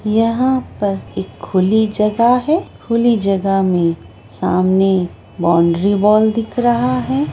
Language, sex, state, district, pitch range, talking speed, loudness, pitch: Hindi, female, Bihar, Araria, 180-230 Hz, 125 wpm, -15 LUFS, 200 Hz